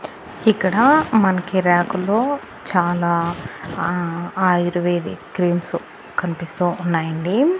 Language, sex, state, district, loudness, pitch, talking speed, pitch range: Telugu, female, Andhra Pradesh, Annamaya, -19 LUFS, 175 Hz, 70 wpm, 175-195 Hz